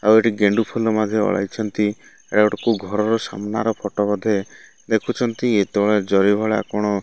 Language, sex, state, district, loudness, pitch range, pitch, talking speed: Odia, male, Odisha, Malkangiri, -20 LUFS, 105-110 Hz, 105 Hz, 160 wpm